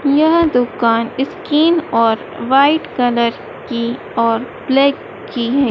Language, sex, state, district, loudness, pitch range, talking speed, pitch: Hindi, female, Madhya Pradesh, Dhar, -15 LUFS, 235-290 Hz, 115 wpm, 255 Hz